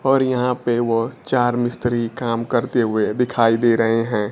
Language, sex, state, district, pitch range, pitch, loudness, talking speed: Hindi, male, Bihar, Kaimur, 115-125 Hz, 120 Hz, -19 LUFS, 180 wpm